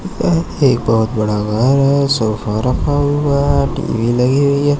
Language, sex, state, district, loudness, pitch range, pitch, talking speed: Hindi, male, Madhya Pradesh, Katni, -15 LUFS, 110-140 Hz, 130 Hz, 175 wpm